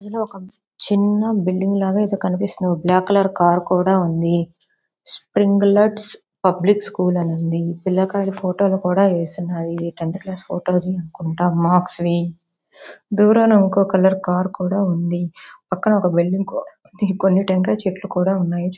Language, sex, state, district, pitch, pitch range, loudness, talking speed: Telugu, female, Andhra Pradesh, Visakhapatnam, 185 Hz, 175-200 Hz, -19 LUFS, 130 wpm